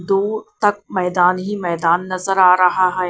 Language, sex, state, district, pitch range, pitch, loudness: Hindi, female, Punjab, Kapurthala, 180-195 Hz, 185 Hz, -17 LUFS